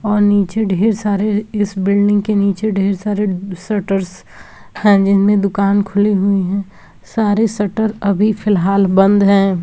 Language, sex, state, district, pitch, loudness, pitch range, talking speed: Hindi, female, Bihar, Kishanganj, 200 Hz, -15 LUFS, 195-210 Hz, 150 wpm